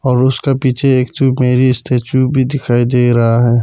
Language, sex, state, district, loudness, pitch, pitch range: Hindi, male, Arunachal Pradesh, Papum Pare, -13 LUFS, 130 Hz, 120-130 Hz